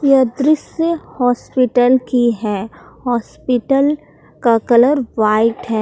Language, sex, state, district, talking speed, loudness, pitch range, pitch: Hindi, female, Jharkhand, Palamu, 105 wpm, -16 LUFS, 230-275 Hz, 245 Hz